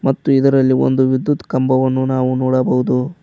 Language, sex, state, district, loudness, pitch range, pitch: Kannada, male, Karnataka, Koppal, -15 LUFS, 130-135 Hz, 130 Hz